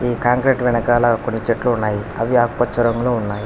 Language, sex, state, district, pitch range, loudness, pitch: Telugu, male, Telangana, Hyderabad, 115-120 Hz, -18 LUFS, 120 Hz